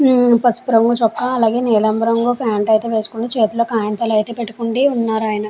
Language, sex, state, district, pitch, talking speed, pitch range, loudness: Telugu, female, Andhra Pradesh, Chittoor, 230 Hz, 150 wpm, 220-240 Hz, -16 LUFS